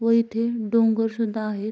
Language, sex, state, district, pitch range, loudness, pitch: Marathi, female, Maharashtra, Sindhudurg, 220-230 Hz, -23 LUFS, 225 Hz